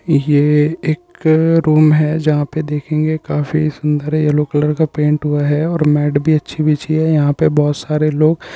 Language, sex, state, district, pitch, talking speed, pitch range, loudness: Hindi, male, Andhra Pradesh, Chittoor, 155 Hz, 195 wpm, 150-155 Hz, -15 LUFS